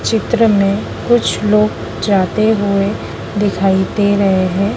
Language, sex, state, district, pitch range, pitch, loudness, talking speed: Hindi, female, Madhya Pradesh, Dhar, 195-215 Hz, 205 Hz, -14 LUFS, 125 wpm